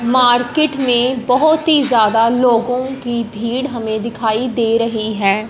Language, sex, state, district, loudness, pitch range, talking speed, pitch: Hindi, female, Punjab, Fazilka, -15 LUFS, 225-255 Hz, 140 wpm, 240 Hz